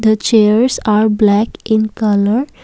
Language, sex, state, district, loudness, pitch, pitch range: English, female, Assam, Kamrup Metropolitan, -13 LUFS, 215 Hz, 210-220 Hz